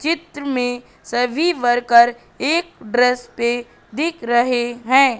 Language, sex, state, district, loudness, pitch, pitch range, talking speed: Hindi, female, Madhya Pradesh, Katni, -18 LUFS, 245 Hz, 240-285 Hz, 115 wpm